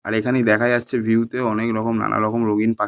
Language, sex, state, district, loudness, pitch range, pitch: Bengali, male, West Bengal, Paschim Medinipur, -20 LUFS, 110-120 Hz, 115 Hz